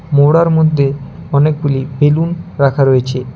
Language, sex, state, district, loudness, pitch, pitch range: Bengali, male, West Bengal, Alipurduar, -13 LUFS, 145 Hz, 135-160 Hz